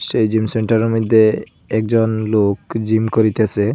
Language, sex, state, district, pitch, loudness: Bengali, male, Assam, Hailakandi, 110 Hz, -16 LUFS